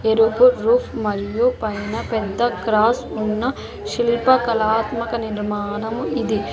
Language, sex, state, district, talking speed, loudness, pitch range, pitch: Telugu, female, Telangana, Hyderabad, 90 wpm, -20 LUFS, 215-240 Hz, 225 Hz